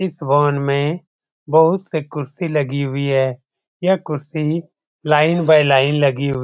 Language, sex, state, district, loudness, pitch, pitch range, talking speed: Hindi, male, Bihar, Jamui, -17 LUFS, 150 Hz, 140-160 Hz, 160 wpm